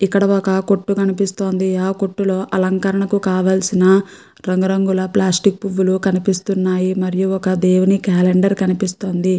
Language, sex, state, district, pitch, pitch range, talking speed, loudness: Telugu, female, Andhra Pradesh, Guntur, 190 Hz, 185-195 Hz, 115 wpm, -17 LUFS